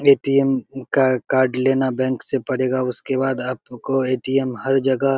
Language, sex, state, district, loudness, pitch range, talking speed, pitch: Maithili, male, Bihar, Begusarai, -20 LUFS, 130-135 Hz, 160 wpm, 130 Hz